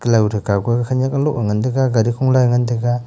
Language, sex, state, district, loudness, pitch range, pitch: Wancho, male, Arunachal Pradesh, Longding, -17 LUFS, 115-130 Hz, 120 Hz